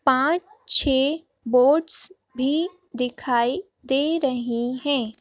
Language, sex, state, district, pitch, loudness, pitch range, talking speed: Hindi, female, Madhya Pradesh, Bhopal, 275 Hz, -21 LUFS, 250-330 Hz, 80 wpm